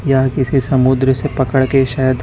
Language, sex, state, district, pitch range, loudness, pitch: Hindi, male, Chhattisgarh, Raipur, 130-135 Hz, -14 LUFS, 130 Hz